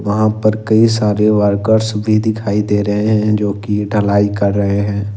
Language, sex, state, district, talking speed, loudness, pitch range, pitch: Hindi, male, Jharkhand, Ranchi, 185 wpm, -14 LUFS, 100-110 Hz, 105 Hz